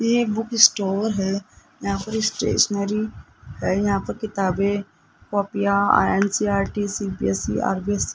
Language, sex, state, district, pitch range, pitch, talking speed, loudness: Hindi, male, Rajasthan, Jaipur, 195-215 Hz, 200 Hz, 120 wpm, -22 LUFS